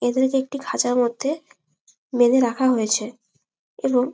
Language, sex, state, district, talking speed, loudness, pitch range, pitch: Bengali, female, West Bengal, Malda, 115 wpm, -21 LUFS, 240-265 Hz, 250 Hz